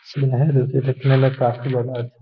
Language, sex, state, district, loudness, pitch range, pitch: Hindi, male, Bihar, Gaya, -19 LUFS, 125-135 Hz, 130 Hz